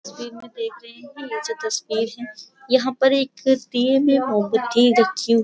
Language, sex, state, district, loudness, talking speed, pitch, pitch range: Hindi, female, Uttar Pradesh, Jyotiba Phule Nagar, -20 LUFS, 185 wpm, 255 Hz, 230-275 Hz